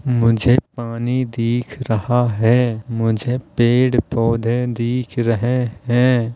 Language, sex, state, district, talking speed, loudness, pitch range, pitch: Hindi, male, Uttar Pradesh, Hamirpur, 95 wpm, -18 LUFS, 115-125 Hz, 120 Hz